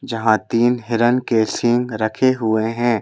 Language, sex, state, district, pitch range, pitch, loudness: Hindi, male, Madhya Pradesh, Bhopal, 110-120 Hz, 115 Hz, -18 LUFS